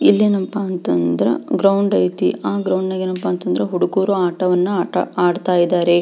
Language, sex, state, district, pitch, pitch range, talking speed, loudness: Kannada, female, Karnataka, Belgaum, 180 Hz, 175-190 Hz, 140 wpm, -18 LUFS